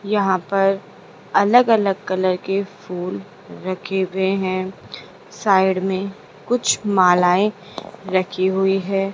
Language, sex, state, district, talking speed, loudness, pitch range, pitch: Hindi, female, Rajasthan, Jaipur, 110 wpm, -19 LUFS, 185-200 Hz, 190 Hz